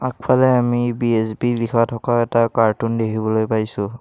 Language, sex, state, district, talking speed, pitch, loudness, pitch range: Assamese, male, Assam, Kamrup Metropolitan, 135 wpm, 115 Hz, -18 LUFS, 110-120 Hz